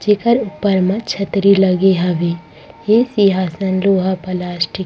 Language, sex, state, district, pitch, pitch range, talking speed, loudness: Chhattisgarhi, female, Chhattisgarh, Rajnandgaon, 190 Hz, 180-200 Hz, 135 wpm, -15 LUFS